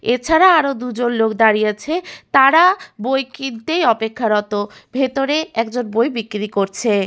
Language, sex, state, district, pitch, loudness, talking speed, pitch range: Bengali, female, West Bengal, Malda, 240 Hz, -17 LUFS, 125 wpm, 220-275 Hz